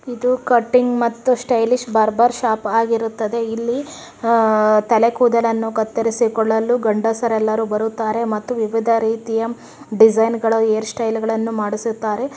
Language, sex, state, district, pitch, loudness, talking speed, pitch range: Kannada, female, Karnataka, Chamarajanagar, 225 Hz, -18 LUFS, 100 wpm, 220-235 Hz